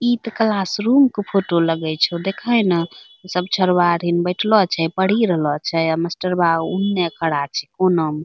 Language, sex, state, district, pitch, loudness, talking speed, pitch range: Angika, female, Bihar, Bhagalpur, 180 Hz, -18 LUFS, 180 wpm, 165-200 Hz